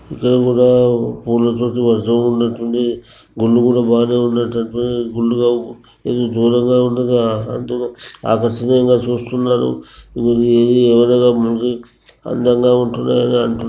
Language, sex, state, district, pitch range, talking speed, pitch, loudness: Telugu, male, Telangana, Nalgonda, 120-125 Hz, 105 wpm, 120 Hz, -15 LUFS